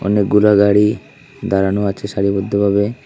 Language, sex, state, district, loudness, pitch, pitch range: Bengali, male, Tripura, Unakoti, -15 LUFS, 100 Hz, 100-105 Hz